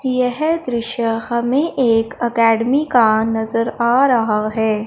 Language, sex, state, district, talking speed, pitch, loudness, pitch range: Hindi, female, Punjab, Fazilka, 125 wpm, 235 Hz, -17 LUFS, 225-255 Hz